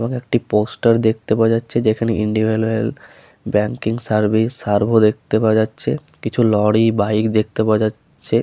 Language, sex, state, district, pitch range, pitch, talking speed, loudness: Bengali, male, West Bengal, Paschim Medinipur, 110-115 Hz, 110 Hz, 150 wpm, -17 LUFS